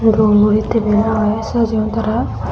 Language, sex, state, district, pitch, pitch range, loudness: Chakma, female, Tripura, Unakoti, 220 Hz, 210-225 Hz, -15 LUFS